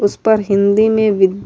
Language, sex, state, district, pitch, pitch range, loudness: Urdu, female, Uttar Pradesh, Budaun, 205 Hz, 200-220 Hz, -13 LUFS